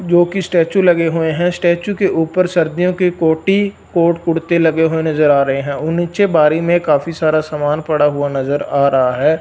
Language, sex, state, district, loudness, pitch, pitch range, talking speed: Hindi, male, Punjab, Fazilka, -15 LUFS, 165 Hz, 150-175 Hz, 215 wpm